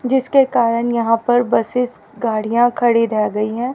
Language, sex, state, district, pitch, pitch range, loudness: Hindi, female, Haryana, Charkhi Dadri, 240 Hz, 230-250 Hz, -17 LUFS